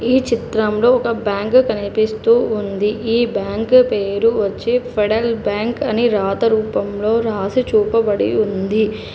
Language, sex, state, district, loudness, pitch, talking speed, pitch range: Telugu, female, Telangana, Hyderabad, -17 LUFS, 220 Hz, 120 wpm, 210-235 Hz